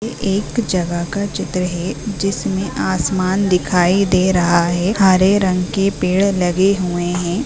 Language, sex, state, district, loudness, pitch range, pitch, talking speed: Hindi, female, Bihar, Purnia, -17 LUFS, 180-200 Hz, 185 Hz, 145 wpm